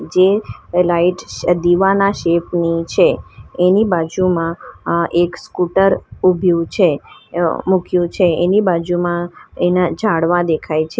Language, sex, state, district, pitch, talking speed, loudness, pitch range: Gujarati, female, Gujarat, Valsad, 175 Hz, 125 wpm, -16 LUFS, 170-185 Hz